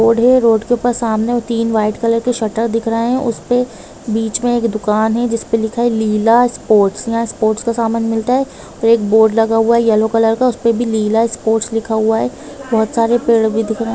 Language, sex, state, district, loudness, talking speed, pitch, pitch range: Hindi, female, Jharkhand, Jamtara, -15 LUFS, 240 wpm, 230 Hz, 220-235 Hz